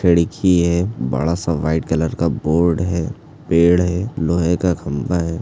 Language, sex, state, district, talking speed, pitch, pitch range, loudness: Hindi, male, Chhattisgarh, Bastar, 165 wpm, 85 Hz, 80-90 Hz, -18 LUFS